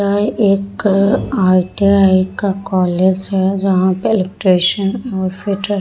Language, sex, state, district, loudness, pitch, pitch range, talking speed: Hindi, female, Bihar, Vaishali, -14 LUFS, 195 Hz, 185-200 Hz, 135 wpm